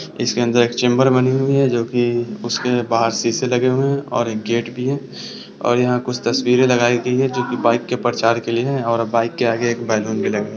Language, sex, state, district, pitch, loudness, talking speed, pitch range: Hindi, male, Bihar, Sitamarhi, 120 Hz, -18 LUFS, 235 wpm, 115-125 Hz